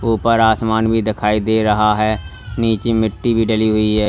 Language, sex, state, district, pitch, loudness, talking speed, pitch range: Hindi, male, Uttar Pradesh, Lalitpur, 110 Hz, -16 LUFS, 190 wpm, 105-115 Hz